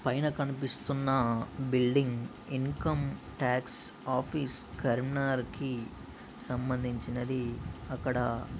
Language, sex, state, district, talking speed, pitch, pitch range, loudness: Telugu, male, Telangana, Karimnagar, 75 wpm, 130 Hz, 125-135 Hz, -33 LUFS